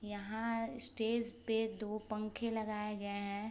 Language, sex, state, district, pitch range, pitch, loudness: Hindi, female, Bihar, Sitamarhi, 210-230 Hz, 220 Hz, -39 LUFS